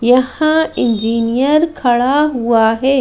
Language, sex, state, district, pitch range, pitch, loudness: Hindi, female, Madhya Pradesh, Bhopal, 235-300 Hz, 255 Hz, -14 LUFS